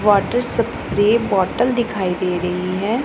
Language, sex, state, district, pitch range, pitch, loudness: Hindi, female, Punjab, Pathankot, 185-235 Hz, 205 Hz, -19 LUFS